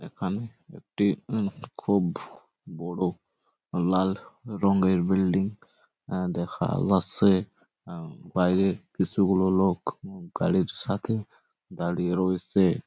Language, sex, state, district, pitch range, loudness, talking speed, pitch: Bengali, male, West Bengal, Purulia, 90-100 Hz, -27 LUFS, 90 wpm, 95 Hz